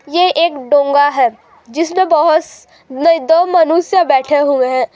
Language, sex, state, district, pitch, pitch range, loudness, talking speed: Hindi, female, Chhattisgarh, Raipur, 320 Hz, 285-340 Hz, -12 LUFS, 145 wpm